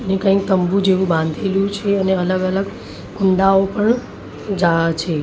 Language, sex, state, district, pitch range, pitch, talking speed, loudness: Gujarati, female, Maharashtra, Mumbai Suburban, 180-195 Hz, 190 Hz, 140 wpm, -17 LUFS